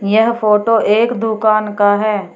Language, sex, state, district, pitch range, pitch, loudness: Hindi, female, Uttar Pradesh, Shamli, 210-225 Hz, 215 Hz, -14 LUFS